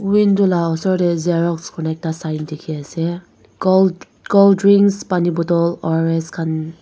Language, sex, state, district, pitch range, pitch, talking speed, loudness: Nagamese, female, Nagaland, Dimapur, 160-190 Hz, 170 Hz, 150 wpm, -17 LUFS